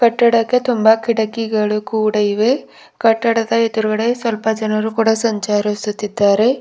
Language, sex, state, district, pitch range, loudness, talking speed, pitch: Kannada, female, Karnataka, Bidar, 215-230 Hz, -16 LUFS, 100 wpm, 220 Hz